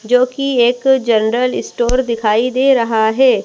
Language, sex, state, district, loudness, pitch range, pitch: Hindi, female, Madhya Pradesh, Bhopal, -14 LUFS, 230-255 Hz, 245 Hz